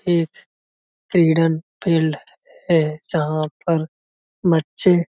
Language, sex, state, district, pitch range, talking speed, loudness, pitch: Hindi, male, Uttar Pradesh, Budaun, 155-170 Hz, 80 wpm, -20 LUFS, 160 Hz